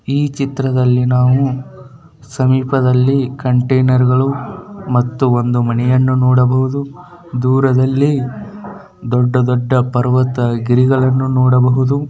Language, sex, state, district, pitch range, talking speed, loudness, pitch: Kannada, male, Karnataka, Bijapur, 125-135 Hz, 70 wpm, -14 LUFS, 130 Hz